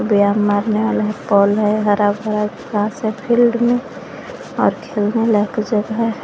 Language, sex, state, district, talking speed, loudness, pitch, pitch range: Hindi, female, Jharkhand, Garhwa, 175 wpm, -17 LUFS, 215 Hz, 205-225 Hz